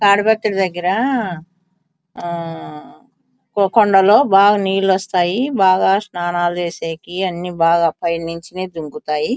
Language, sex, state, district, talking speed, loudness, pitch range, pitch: Telugu, female, Andhra Pradesh, Anantapur, 100 wpm, -17 LUFS, 170-200 Hz, 185 Hz